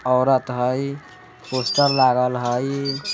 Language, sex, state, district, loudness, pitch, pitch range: Hindi, male, Bihar, Vaishali, -20 LUFS, 130 Hz, 125-140 Hz